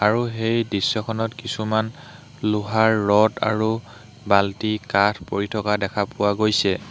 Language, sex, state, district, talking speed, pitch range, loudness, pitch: Assamese, male, Assam, Hailakandi, 120 wpm, 105-115 Hz, -22 LUFS, 110 Hz